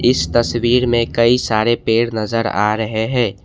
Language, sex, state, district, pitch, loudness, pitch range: Hindi, male, Assam, Kamrup Metropolitan, 115 Hz, -16 LUFS, 110-120 Hz